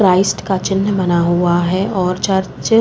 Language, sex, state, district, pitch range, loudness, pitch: Hindi, female, Uttar Pradesh, Jalaun, 180-195 Hz, -16 LUFS, 190 Hz